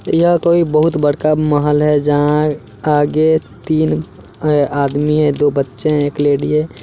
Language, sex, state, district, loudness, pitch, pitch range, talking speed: Hindi, male, Chandigarh, Chandigarh, -15 LUFS, 150 Hz, 145-155 Hz, 160 wpm